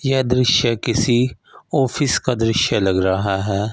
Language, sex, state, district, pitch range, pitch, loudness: Hindi, male, Punjab, Fazilka, 100-130 Hz, 115 Hz, -18 LUFS